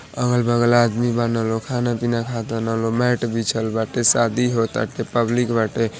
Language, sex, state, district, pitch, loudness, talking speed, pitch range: Bhojpuri, male, Uttar Pradesh, Deoria, 115 Hz, -20 LUFS, 190 wpm, 115-120 Hz